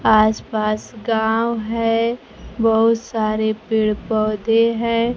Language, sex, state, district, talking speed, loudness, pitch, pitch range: Hindi, female, Bihar, Kaimur, 105 wpm, -19 LUFS, 225 Hz, 215-230 Hz